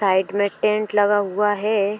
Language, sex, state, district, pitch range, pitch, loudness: Hindi, female, Uttar Pradesh, Etah, 200-210 Hz, 205 Hz, -20 LUFS